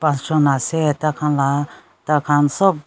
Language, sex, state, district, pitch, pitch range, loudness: Nagamese, female, Nagaland, Kohima, 150 Hz, 145-155 Hz, -18 LUFS